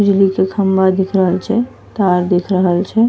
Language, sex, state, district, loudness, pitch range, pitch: Angika, female, Bihar, Bhagalpur, -15 LUFS, 185-200 Hz, 190 Hz